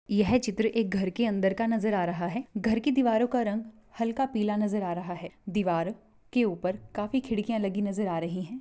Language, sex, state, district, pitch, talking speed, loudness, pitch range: Hindi, female, Rajasthan, Churu, 210 Hz, 225 wpm, -29 LUFS, 195-230 Hz